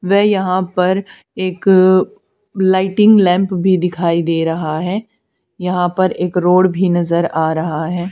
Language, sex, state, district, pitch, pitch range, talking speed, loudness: Hindi, female, Haryana, Charkhi Dadri, 185 Hz, 175-190 Hz, 150 wpm, -15 LUFS